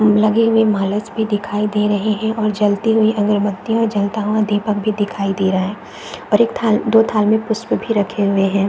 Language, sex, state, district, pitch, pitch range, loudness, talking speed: Hindi, female, Uttar Pradesh, Deoria, 210 Hz, 205-220 Hz, -17 LUFS, 215 wpm